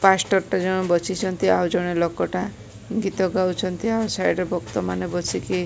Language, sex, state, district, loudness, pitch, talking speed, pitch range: Odia, female, Odisha, Malkangiri, -23 LUFS, 185 Hz, 115 wpm, 175-190 Hz